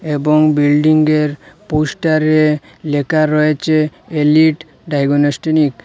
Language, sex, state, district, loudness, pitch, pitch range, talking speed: Bengali, male, Assam, Hailakandi, -14 LUFS, 150 Hz, 145-155 Hz, 80 wpm